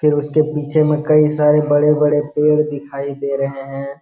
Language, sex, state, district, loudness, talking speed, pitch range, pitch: Hindi, male, Bihar, Jamui, -16 LUFS, 195 wpm, 140-150 Hz, 150 Hz